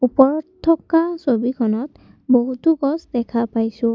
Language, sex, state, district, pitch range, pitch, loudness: Assamese, female, Assam, Kamrup Metropolitan, 235-315 Hz, 255 Hz, -19 LUFS